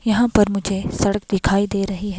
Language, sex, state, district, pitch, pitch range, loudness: Hindi, female, Himachal Pradesh, Shimla, 200 Hz, 195-210 Hz, -19 LUFS